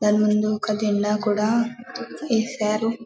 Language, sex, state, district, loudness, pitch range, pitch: Telugu, female, Telangana, Karimnagar, -22 LUFS, 210-230 Hz, 215 Hz